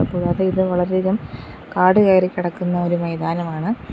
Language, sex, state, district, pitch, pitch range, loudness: Malayalam, female, Kerala, Kollam, 180 Hz, 175-190 Hz, -19 LUFS